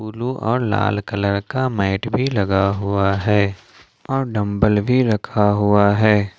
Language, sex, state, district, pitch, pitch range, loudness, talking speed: Hindi, male, Jharkhand, Ranchi, 105 Hz, 100-115 Hz, -18 LUFS, 150 wpm